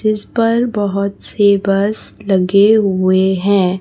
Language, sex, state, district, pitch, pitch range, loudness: Hindi, female, Chhattisgarh, Raipur, 200 Hz, 190-215 Hz, -14 LUFS